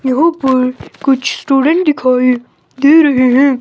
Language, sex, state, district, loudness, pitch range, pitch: Hindi, male, Himachal Pradesh, Shimla, -12 LUFS, 255-290 Hz, 270 Hz